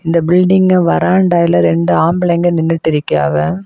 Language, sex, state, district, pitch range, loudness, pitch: Tamil, female, Tamil Nadu, Kanyakumari, 155-180 Hz, -12 LUFS, 170 Hz